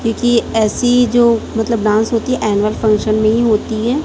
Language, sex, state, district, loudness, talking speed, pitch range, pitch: Hindi, female, Chhattisgarh, Raipur, -14 LUFS, 195 wpm, 215-240 Hz, 225 Hz